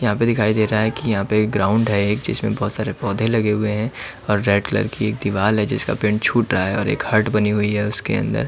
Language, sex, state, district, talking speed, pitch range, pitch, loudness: Hindi, male, Uttar Pradesh, Muzaffarnagar, 275 wpm, 105-110 Hz, 105 Hz, -19 LUFS